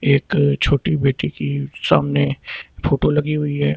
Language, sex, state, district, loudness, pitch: Hindi, male, Uttar Pradesh, Lucknow, -19 LUFS, 140 Hz